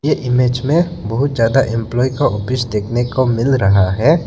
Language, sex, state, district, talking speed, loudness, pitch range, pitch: Hindi, male, Arunachal Pradesh, Lower Dibang Valley, 170 wpm, -16 LUFS, 115-135 Hz, 125 Hz